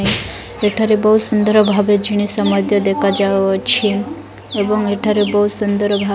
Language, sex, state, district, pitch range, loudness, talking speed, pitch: Odia, female, Odisha, Malkangiri, 205-210 Hz, -15 LUFS, 125 wpm, 205 Hz